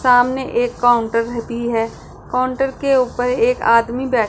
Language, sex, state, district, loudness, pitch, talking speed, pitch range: Hindi, female, Punjab, Pathankot, -17 LUFS, 245 Hz, 170 wpm, 235-260 Hz